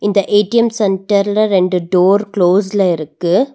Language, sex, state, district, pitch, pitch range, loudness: Tamil, female, Tamil Nadu, Nilgiris, 200 Hz, 180-205 Hz, -14 LUFS